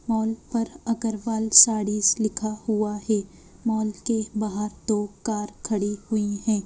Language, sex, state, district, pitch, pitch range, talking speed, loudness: Hindi, female, Madhya Pradesh, Bhopal, 215 Hz, 210-225 Hz, 135 wpm, -23 LUFS